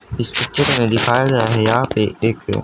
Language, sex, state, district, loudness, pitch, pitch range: Hindi, male, Haryana, Charkhi Dadri, -16 LUFS, 120 Hz, 115-125 Hz